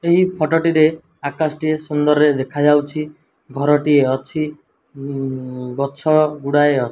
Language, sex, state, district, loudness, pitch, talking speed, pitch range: Odia, male, Odisha, Malkangiri, -18 LUFS, 150 Hz, 130 wpm, 140-155 Hz